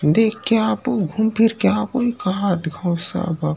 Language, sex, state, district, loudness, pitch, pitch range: Chhattisgarhi, male, Chhattisgarh, Rajnandgaon, -19 LUFS, 210 Hz, 175-225 Hz